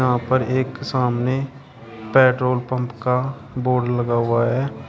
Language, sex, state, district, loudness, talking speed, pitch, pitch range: Hindi, male, Uttar Pradesh, Shamli, -20 LUFS, 135 wpm, 125 Hz, 120-130 Hz